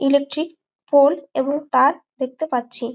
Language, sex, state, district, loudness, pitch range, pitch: Bengali, female, West Bengal, Malda, -20 LUFS, 260-305 Hz, 280 Hz